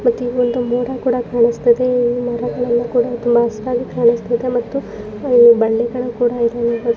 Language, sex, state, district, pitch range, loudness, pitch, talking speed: Kannada, female, Karnataka, Mysore, 235-245 Hz, -16 LUFS, 240 Hz, 145 wpm